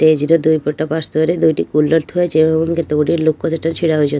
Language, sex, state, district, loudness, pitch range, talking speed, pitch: Odia, female, Odisha, Nuapada, -15 LUFS, 155-165 Hz, 270 wpm, 160 Hz